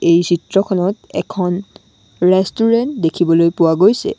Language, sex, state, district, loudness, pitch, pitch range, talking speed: Assamese, female, Assam, Sonitpur, -15 LUFS, 185 Hz, 170-200 Hz, 100 wpm